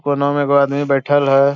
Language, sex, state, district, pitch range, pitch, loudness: Hindi, male, Bihar, Bhagalpur, 140-145 Hz, 140 Hz, -15 LUFS